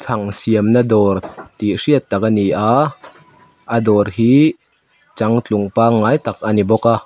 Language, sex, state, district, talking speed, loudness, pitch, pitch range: Mizo, male, Mizoram, Aizawl, 160 wpm, -15 LUFS, 110 Hz, 105-115 Hz